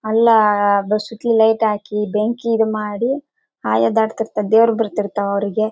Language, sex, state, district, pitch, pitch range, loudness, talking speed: Kannada, female, Karnataka, Bellary, 220 Hz, 210-225 Hz, -17 LUFS, 115 wpm